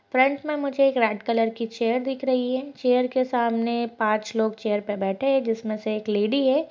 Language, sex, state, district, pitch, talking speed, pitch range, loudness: Hindi, female, Uttar Pradesh, Jalaun, 235 Hz, 225 wpm, 220-265 Hz, -24 LUFS